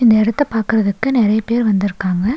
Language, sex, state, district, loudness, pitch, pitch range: Tamil, female, Tamil Nadu, Nilgiris, -16 LUFS, 220 Hz, 205-230 Hz